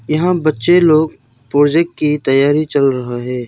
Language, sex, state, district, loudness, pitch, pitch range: Hindi, male, Arunachal Pradesh, Lower Dibang Valley, -14 LUFS, 145 Hz, 125-155 Hz